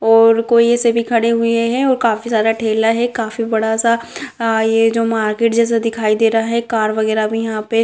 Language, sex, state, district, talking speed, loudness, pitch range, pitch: Hindi, female, Bihar, Gopalganj, 205 wpm, -15 LUFS, 220-230 Hz, 225 Hz